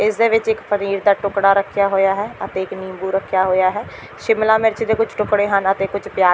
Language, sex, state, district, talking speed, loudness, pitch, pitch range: Punjabi, female, Delhi, New Delhi, 235 wpm, -18 LUFS, 200 Hz, 195-215 Hz